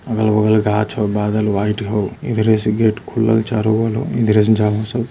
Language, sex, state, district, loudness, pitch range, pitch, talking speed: Hindi, male, Bihar, Lakhisarai, -17 LUFS, 105-110 Hz, 110 Hz, 225 wpm